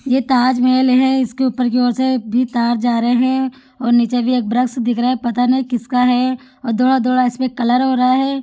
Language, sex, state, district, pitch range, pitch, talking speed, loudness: Hindi, female, Rajasthan, Churu, 245-260 Hz, 250 Hz, 240 wpm, -16 LUFS